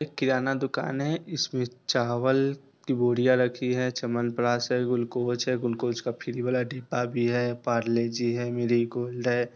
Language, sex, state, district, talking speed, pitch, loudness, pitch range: Hindi, male, Bihar, Sitamarhi, 165 wpm, 125 Hz, -27 LUFS, 120-130 Hz